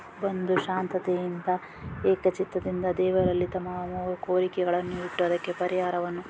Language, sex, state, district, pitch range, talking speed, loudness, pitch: Kannada, female, Karnataka, Dakshina Kannada, 180-185 Hz, 105 wpm, -28 LUFS, 180 Hz